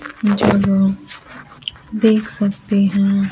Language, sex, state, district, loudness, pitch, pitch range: Hindi, female, Bihar, Kaimur, -16 LUFS, 200 Hz, 195-215 Hz